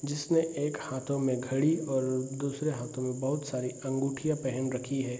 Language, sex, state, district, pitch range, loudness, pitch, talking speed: Hindi, male, Bihar, Darbhanga, 130-145 Hz, -31 LUFS, 135 Hz, 175 wpm